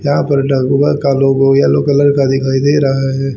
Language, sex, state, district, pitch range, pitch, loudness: Hindi, male, Haryana, Rohtak, 135-145 Hz, 135 Hz, -12 LUFS